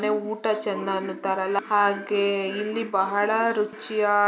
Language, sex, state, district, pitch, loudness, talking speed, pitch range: Kannada, female, Karnataka, Mysore, 205 Hz, -25 LUFS, 110 wpm, 195-215 Hz